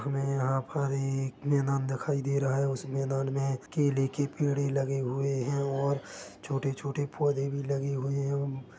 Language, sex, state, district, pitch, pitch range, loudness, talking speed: Hindi, male, Chhattisgarh, Bilaspur, 140 Hz, 135-140 Hz, -30 LUFS, 170 wpm